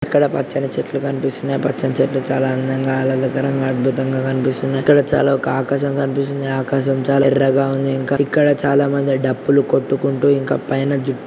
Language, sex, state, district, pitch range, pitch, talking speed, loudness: Telugu, male, Andhra Pradesh, Srikakulam, 135-140 Hz, 135 Hz, 140 wpm, -17 LUFS